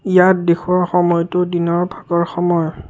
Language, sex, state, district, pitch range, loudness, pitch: Assamese, male, Assam, Kamrup Metropolitan, 170-180 Hz, -16 LUFS, 175 Hz